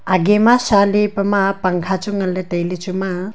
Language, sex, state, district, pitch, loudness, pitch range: Wancho, female, Arunachal Pradesh, Longding, 195 Hz, -17 LUFS, 185-205 Hz